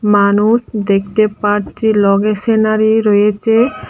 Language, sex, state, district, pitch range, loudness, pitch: Bengali, female, Tripura, Dhalai, 205-220 Hz, -13 LUFS, 210 Hz